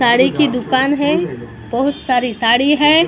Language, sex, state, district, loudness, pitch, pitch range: Hindi, female, Maharashtra, Mumbai Suburban, -15 LUFS, 265 Hz, 245-295 Hz